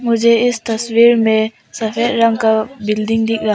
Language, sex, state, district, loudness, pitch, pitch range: Hindi, female, Arunachal Pradesh, Papum Pare, -15 LUFS, 225 Hz, 220-235 Hz